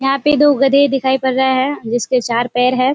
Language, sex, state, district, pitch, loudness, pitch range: Hindi, female, Bihar, Kishanganj, 265 Hz, -14 LUFS, 250-275 Hz